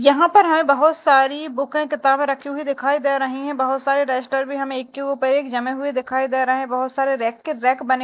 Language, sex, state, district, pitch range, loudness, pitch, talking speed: Hindi, female, Madhya Pradesh, Dhar, 260-285 Hz, -19 LUFS, 275 Hz, 260 wpm